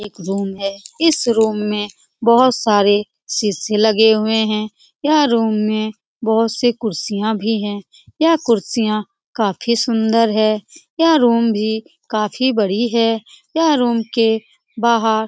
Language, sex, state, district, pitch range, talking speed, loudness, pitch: Hindi, female, Bihar, Lakhisarai, 210-235 Hz, 135 wpm, -17 LUFS, 220 Hz